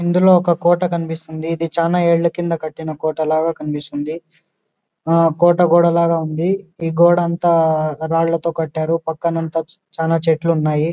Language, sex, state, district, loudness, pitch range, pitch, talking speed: Telugu, male, Andhra Pradesh, Anantapur, -17 LUFS, 160-170 Hz, 165 Hz, 155 wpm